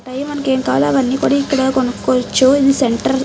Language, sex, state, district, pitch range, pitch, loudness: Telugu, female, Andhra Pradesh, Chittoor, 255-275 Hz, 265 Hz, -15 LUFS